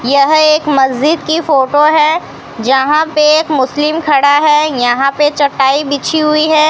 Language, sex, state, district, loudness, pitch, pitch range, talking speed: Hindi, female, Rajasthan, Bikaner, -11 LUFS, 295 Hz, 275-310 Hz, 160 wpm